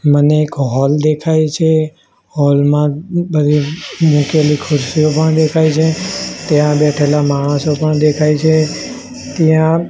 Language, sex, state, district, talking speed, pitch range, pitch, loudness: Gujarati, male, Gujarat, Gandhinagar, 120 wpm, 145-160 Hz, 150 Hz, -13 LUFS